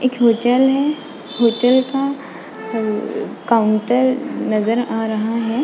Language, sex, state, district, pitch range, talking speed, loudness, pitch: Hindi, female, Goa, North and South Goa, 225-265 Hz, 95 wpm, -18 LUFS, 240 Hz